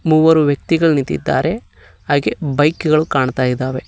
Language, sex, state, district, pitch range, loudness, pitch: Kannada, male, Karnataka, Koppal, 130-155 Hz, -16 LUFS, 145 Hz